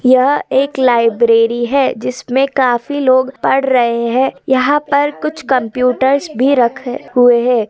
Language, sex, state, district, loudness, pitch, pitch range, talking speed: Hindi, female, Uttar Pradesh, Hamirpur, -13 LUFS, 260 Hz, 240-275 Hz, 150 wpm